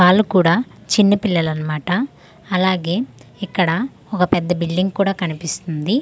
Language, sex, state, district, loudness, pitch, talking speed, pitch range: Telugu, female, Andhra Pradesh, Manyam, -19 LUFS, 185 Hz, 110 wpm, 170-205 Hz